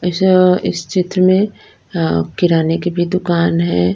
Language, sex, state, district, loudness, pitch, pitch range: Hindi, female, Punjab, Kapurthala, -15 LUFS, 175 Hz, 125-185 Hz